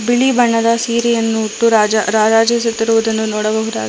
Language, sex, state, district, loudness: Kannada, male, Karnataka, Bangalore, -14 LUFS